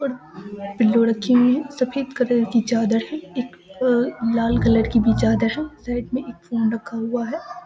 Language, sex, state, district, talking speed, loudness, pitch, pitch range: Maithili, female, Bihar, Samastipur, 195 wpm, -21 LUFS, 235 Hz, 225-250 Hz